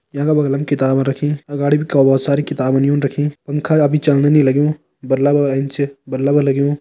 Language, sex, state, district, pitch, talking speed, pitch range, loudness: Hindi, male, Uttarakhand, Tehri Garhwal, 145 Hz, 175 wpm, 135-150 Hz, -16 LUFS